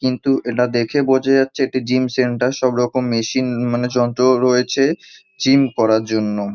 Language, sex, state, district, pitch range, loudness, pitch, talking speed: Bengali, male, West Bengal, North 24 Parganas, 120-130 Hz, -17 LUFS, 125 Hz, 145 wpm